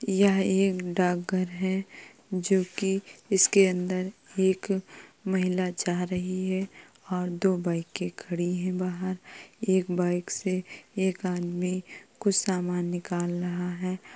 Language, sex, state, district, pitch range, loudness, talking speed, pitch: Hindi, female, Uttar Pradesh, Jalaun, 180-190 Hz, -28 LUFS, 125 wpm, 185 Hz